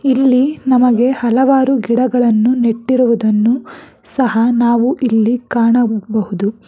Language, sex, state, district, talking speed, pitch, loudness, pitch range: Kannada, female, Karnataka, Bangalore, 80 wpm, 240 Hz, -13 LUFS, 230-255 Hz